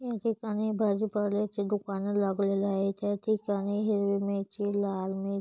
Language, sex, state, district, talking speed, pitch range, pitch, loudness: Marathi, female, Maharashtra, Chandrapur, 135 wpm, 200-210 Hz, 205 Hz, -30 LUFS